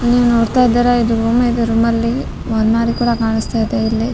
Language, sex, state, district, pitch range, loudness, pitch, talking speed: Kannada, female, Karnataka, Raichur, 225-240 Hz, -15 LUFS, 230 Hz, 190 wpm